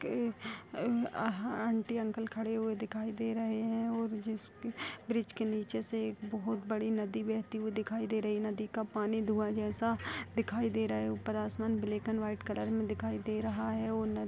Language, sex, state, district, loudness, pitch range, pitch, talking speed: Hindi, female, Bihar, Sitamarhi, -36 LUFS, 210-225 Hz, 220 Hz, 200 wpm